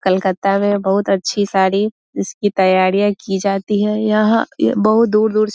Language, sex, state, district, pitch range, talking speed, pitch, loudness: Hindi, female, Bihar, Muzaffarpur, 190-215 Hz, 160 wpm, 200 Hz, -16 LUFS